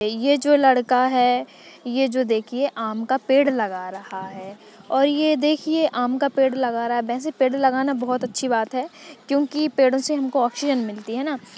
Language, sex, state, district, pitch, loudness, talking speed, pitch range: Hindi, female, Chhattisgarh, Sukma, 260 Hz, -21 LUFS, 190 wpm, 235-280 Hz